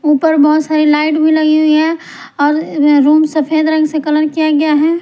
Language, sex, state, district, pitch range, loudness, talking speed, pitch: Hindi, female, Punjab, Pathankot, 300-315 Hz, -11 LUFS, 205 wpm, 310 Hz